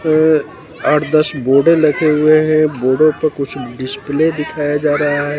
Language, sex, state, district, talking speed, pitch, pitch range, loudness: Hindi, male, Haryana, Jhajjar, 165 wpm, 150 Hz, 140-155 Hz, -14 LUFS